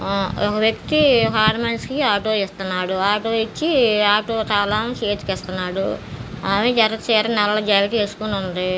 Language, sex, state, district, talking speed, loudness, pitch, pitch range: Telugu, male, Andhra Pradesh, Guntur, 130 wpm, -19 LUFS, 210 Hz, 195-225 Hz